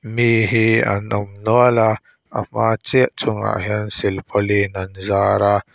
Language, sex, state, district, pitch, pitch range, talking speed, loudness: Mizo, male, Mizoram, Aizawl, 105 Hz, 100-115 Hz, 145 wpm, -18 LUFS